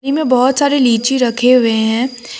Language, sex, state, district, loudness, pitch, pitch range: Hindi, female, Jharkhand, Deoghar, -13 LUFS, 250 Hz, 235-270 Hz